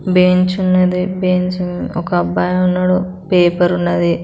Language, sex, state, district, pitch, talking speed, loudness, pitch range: Telugu, female, Telangana, Karimnagar, 180 Hz, 115 wpm, -15 LUFS, 175-185 Hz